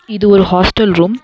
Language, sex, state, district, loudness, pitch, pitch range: Tamil, female, Tamil Nadu, Nilgiris, -10 LUFS, 205 Hz, 185-220 Hz